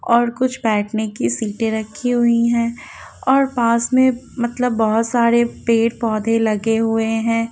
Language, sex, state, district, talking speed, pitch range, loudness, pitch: Hindi, female, Haryana, Jhajjar, 145 wpm, 225-240 Hz, -18 LUFS, 230 Hz